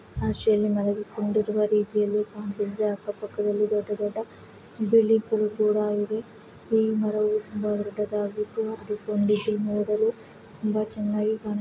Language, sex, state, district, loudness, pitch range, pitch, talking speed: Kannada, female, Karnataka, Mysore, -26 LUFS, 210-215 Hz, 210 Hz, 65 wpm